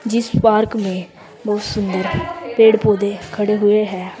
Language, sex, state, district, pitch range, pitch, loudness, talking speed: Hindi, female, Uttar Pradesh, Saharanpur, 190-220 Hz, 210 Hz, -17 LUFS, 155 wpm